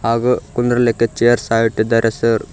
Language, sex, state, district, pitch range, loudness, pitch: Kannada, male, Karnataka, Koppal, 115-120 Hz, -16 LUFS, 115 Hz